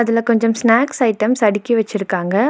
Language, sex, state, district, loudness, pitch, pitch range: Tamil, female, Tamil Nadu, Nilgiris, -16 LUFS, 225 Hz, 210-235 Hz